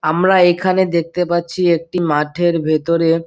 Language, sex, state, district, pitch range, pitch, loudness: Bengali, male, West Bengal, Dakshin Dinajpur, 165-180 Hz, 170 Hz, -16 LUFS